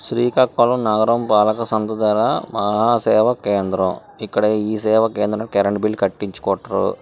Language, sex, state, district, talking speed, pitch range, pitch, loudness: Telugu, male, Andhra Pradesh, Srikakulam, 110 wpm, 105-115 Hz, 110 Hz, -18 LUFS